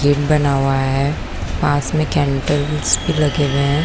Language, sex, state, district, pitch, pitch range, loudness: Hindi, female, Chhattisgarh, Korba, 145 Hz, 140-150 Hz, -17 LUFS